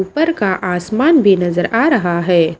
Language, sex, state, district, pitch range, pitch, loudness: Hindi, female, Maharashtra, Washim, 175-255 Hz, 190 Hz, -14 LUFS